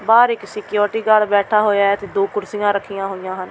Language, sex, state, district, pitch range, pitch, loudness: Punjabi, female, Delhi, New Delhi, 200-210 Hz, 205 Hz, -17 LUFS